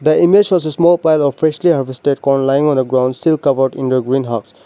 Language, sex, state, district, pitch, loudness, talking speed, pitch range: English, male, Nagaland, Dimapur, 140 Hz, -14 LUFS, 255 wpm, 130-160 Hz